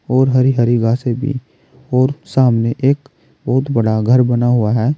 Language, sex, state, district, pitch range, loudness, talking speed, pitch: Hindi, male, Uttar Pradesh, Saharanpur, 120-130 Hz, -15 LUFS, 170 wpm, 125 Hz